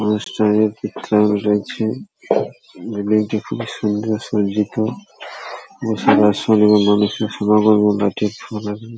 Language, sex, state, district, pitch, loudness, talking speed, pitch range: Bengali, male, West Bengal, Paschim Medinipur, 105 Hz, -18 LUFS, 55 wpm, 105-110 Hz